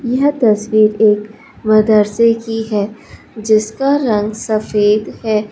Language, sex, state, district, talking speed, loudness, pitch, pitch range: Hindi, male, Bihar, Supaul, 110 wpm, -14 LUFS, 215 Hz, 215-225 Hz